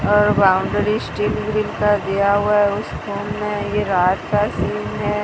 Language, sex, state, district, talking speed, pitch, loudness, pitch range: Hindi, female, Odisha, Sambalpur, 170 wpm, 205 Hz, -19 LUFS, 200-210 Hz